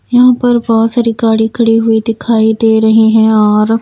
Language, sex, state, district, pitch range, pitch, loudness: Hindi, female, Bihar, Patna, 220-230 Hz, 225 Hz, -10 LUFS